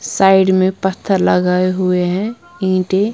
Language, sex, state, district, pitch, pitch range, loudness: Hindi, female, Punjab, Kapurthala, 190 Hz, 180-190 Hz, -15 LUFS